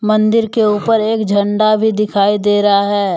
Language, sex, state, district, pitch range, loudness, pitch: Hindi, male, Jharkhand, Deoghar, 205-220 Hz, -13 LUFS, 210 Hz